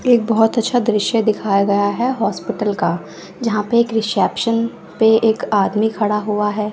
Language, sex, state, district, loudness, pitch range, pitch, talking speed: Hindi, female, Bihar, West Champaran, -17 LUFS, 205-230 Hz, 220 Hz, 170 wpm